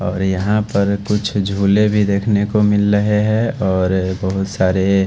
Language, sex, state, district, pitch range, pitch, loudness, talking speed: Hindi, male, Haryana, Charkhi Dadri, 95-105 Hz, 100 Hz, -16 LUFS, 165 wpm